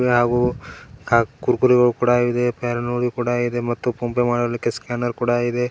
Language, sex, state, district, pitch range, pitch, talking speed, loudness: Kannada, male, Karnataka, Koppal, 120-125 Hz, 120 Hz, 180 wpm, -20 LUFS